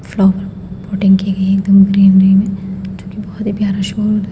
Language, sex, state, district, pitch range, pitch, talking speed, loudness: Hindi, female, Madhya Pradesh, Bhopal, 190-200 Hz, 195 Hz, 220 wpm, -12 LUFS